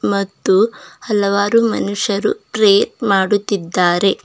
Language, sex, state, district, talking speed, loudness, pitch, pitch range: Kannada, female, Karnataka, Bidar, 70 wpm, -16 LUFS, 200 Hz, 195-215 Hz